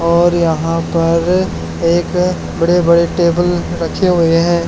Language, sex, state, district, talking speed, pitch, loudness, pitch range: Hindi, male, Haryana, Charkhi Dadri, 130 wpm, 170 Hz, -14 LUFS, 165-175 Hz